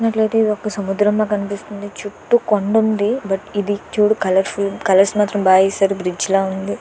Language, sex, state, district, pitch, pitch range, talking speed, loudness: Telugu, female, Andhra Pradesh, Visakhapatnam, 205 Hz, 195-210 Hz, 140 wpm, -17 LUFS